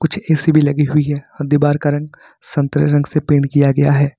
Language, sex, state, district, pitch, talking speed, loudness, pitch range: Hindi, male, Jharkhand, Ranchi, 145 Hz, 230 wpm, -15 LUFS, 145-150 Hz